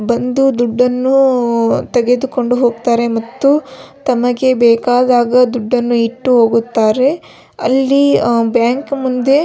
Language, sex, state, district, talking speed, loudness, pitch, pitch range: Kannada, female, Karnataka, Belgaum, 95 wpm, -13 LUFS, 245 Hz, 235-265 Hz